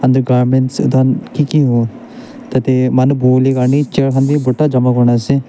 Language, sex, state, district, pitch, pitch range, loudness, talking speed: Nagamese, male, Nagaland, Dimapur, 130 Hz, 125-135 Hz, -13 LUFS, 185 wpm